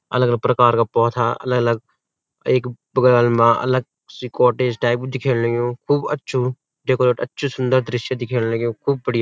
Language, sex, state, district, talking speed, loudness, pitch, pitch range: Garhwali, male, Uttarakhand, Uttarkashi, 155 wpm, -19 LUFS, 125 Hz, 120-130 Hz